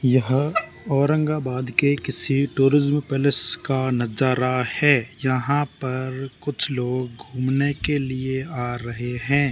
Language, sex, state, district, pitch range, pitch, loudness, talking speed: Hindi, male, Rajasthan, Barmer, 125-140 Hz, 135 Hz, -22 LUFS, 120 wpm